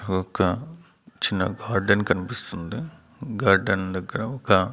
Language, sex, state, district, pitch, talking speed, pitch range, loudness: Telugu, male, Andhra Pradesh, Manyam, 100 Hz, 90 wpm, 95-110 Hz, -24 LUFS